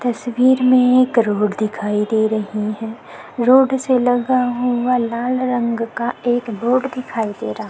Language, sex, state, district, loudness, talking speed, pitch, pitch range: Hindi, female, Chhattisgarh, Korba, -17 LUFS, 155 wpm, 245 Hz, 220-255 Hz